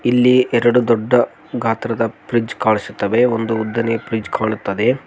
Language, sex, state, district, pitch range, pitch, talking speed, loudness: Kannada, male, Karnataka, Koppal, 115-125 Hz, 115 Hz, 120 wpm, -17 LUFS